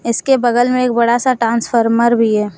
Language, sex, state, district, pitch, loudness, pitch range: Hindi, female, Jharkhand, Deoghar, 235 Hz, -14 LUFS, 230-245 Hz